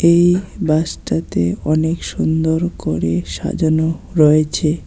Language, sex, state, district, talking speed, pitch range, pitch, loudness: Bengali, male, West Bengal, Alipurduar, 85 wpm, 100-165 Hz, 155 Hz, -17 LUFS